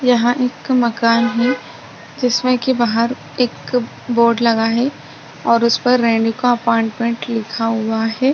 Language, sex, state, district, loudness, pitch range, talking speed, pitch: Hindi, female, Maharashtra, Chandrapur, -17 LUFS, 230-250 Hz, 130 wpm, 235 Hz